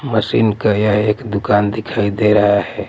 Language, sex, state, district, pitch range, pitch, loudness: Hindi, male, Punjab, Pathankot, 105-110 Hz, 105 Hz, -15 LUFS